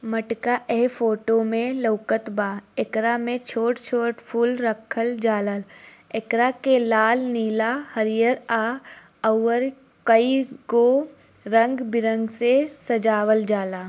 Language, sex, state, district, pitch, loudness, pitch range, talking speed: Bhojpuri, female, Bihar, Gopalganj, 230 Hz, -22 LUFS, 220-245 Hz, 110 wpm